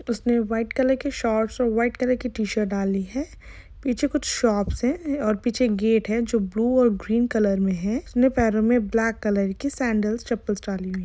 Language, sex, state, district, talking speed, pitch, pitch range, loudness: Hindi, female, Jharkhand, Sahebganj, 205 wpm, 230 Hz, 210-250 Hz, -23 LUFS